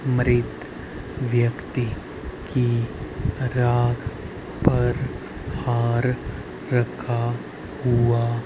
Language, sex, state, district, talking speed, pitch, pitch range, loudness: Hindi, male, Haryana, Rohtak, 55 wpm, 120 Hz, 110-125 Hz, -24 LUFS